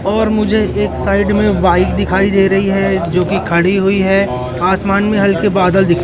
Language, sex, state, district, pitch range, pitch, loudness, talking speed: Hindi, male, Madhya Pradesh, Katni, 185-200 Hz, 195 Hz, -13 LUFS, 180 wpm